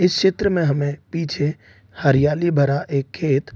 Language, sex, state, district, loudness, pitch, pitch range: Hindi, male, Bihar, East Champaran, -20 LUFS, 145 Hz, 140-170 Hz